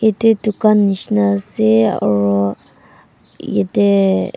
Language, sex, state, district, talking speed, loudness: Nagamese, female, Nagaland, Dimapur, 80 wpm, -15 LUFS